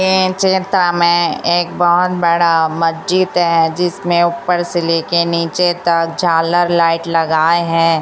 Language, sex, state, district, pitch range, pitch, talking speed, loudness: Hindi, female, Chhattisgarh, Raipur, 165-175 Hz, 170 Hz, 135 wpm, -14 LUFS